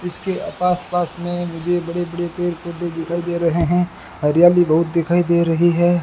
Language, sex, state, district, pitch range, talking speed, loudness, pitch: Hindi, male, Rajasthan, Bikaner, 170-175 Hz, 190 wpm, -19 LUFS, 175 Hz